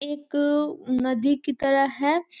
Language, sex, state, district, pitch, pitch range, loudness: Hindi, female, Bihar, East Champaran, 285 Hz, 275-295 Hz, -24 LUFS